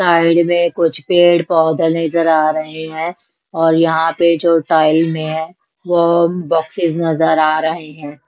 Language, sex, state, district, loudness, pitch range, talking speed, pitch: Hindi, female, Bihar, West Champaran, -14 LUFS, 160-170 Hz, 160 wpm, 165 Hz